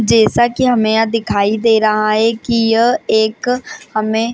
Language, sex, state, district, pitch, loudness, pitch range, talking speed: Hindi, female, Maharashtra, Chandrapur, 225 Hz, -14 LUFS, 220-235 Hz, 180 wpm